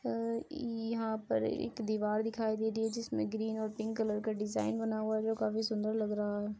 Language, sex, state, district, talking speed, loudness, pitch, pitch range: Hindi, female, Uttar Pradesh, Etah, 225 wpm, -35 LUFS, 220 Hz, 215-225 Hz